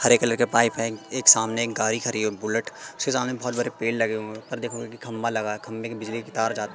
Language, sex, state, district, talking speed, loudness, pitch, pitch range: Hindi, female, Madhya Pradesh, Katni, 295 wpm, -24 LUFS, 115 Hz, 110-120 Hz